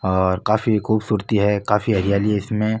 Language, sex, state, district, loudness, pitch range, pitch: Marwari, male, Rajasthan, Nagaur, -19 LUFS, 100-110 Hz, 105 Hz